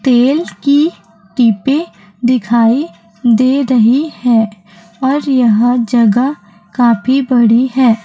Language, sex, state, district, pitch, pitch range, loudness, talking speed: Hindi, female, Chhattisgarh, Raipur, 240 Hz, 225-265 Hz, -12 LUFS, 95 wpm